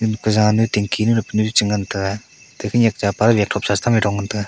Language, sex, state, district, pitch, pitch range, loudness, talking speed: Wancho, male, Arunachal Pradesh, Longding, 105 Hz, 105-110 Hz, -18 LUFS, 225 wpm